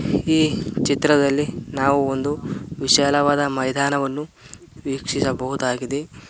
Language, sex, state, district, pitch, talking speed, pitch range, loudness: Kannada, male, Karnataka, Koppal, 140 Hz, 65 wpm, 135-145 Hz, -20 LUFS